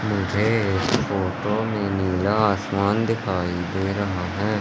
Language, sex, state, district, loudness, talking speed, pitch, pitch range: Hindi, male, Madhya Pradesh, Katni, -23 LUFS, 130 wpm, 100 Hz, 95-105 Hz